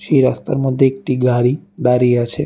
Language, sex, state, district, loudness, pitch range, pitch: Bengali, male, Tripura, West Tripura, -16 LUFS, 125-140 Hz, 130 Hz